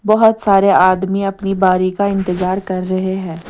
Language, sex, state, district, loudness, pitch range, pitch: Hindi, female, Bihar, West Champaran, -15 LUFS, 185-195 Hz, 190 Hz